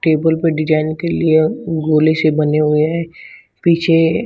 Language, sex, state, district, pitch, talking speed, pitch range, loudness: Hindi, male, Uttar Pradesh, Shamli, 160 Hz, 155 wpm, 155-165 Hz, -15 LUFS